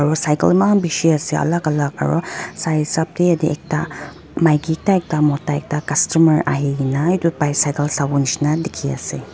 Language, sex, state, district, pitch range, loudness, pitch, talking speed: Nagamese, female, Nagaland, Dimapur, 145-165 Hz, -18 LUFS, 155 Hz, 150 wpm